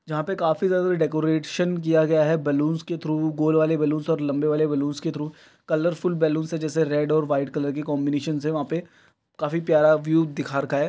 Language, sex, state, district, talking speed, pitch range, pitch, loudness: Hindi, male, Uttar Pradesh, Deoria, 215 wpm, 150-160 Hz, 155 Hz, -23 LUFS